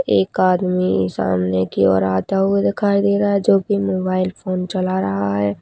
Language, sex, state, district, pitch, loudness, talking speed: Hindi, female, Rajasthan, Nagaur, 185 Hz, -18 LUFS, 190 wpm